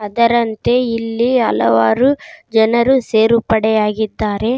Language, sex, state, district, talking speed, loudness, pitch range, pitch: Kannada, female, Karnataka, Raichur, 80 wpm, -15 LUFS, 220-240 Hz, 230 Hz